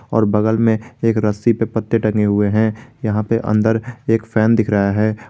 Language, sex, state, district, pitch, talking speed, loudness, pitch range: Hindi, male, Jharkhand, Garhwa, 110 Hz, 205 wpm, -17 LUFS, 105-115 Hz